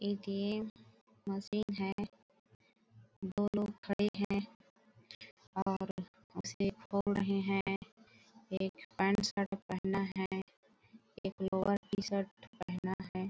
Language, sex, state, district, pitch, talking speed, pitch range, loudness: Hindi, female, Chhattisgarh, Bilaspur, 195 Hz, 105 wpm, 190-205 Hz, -38 LUFS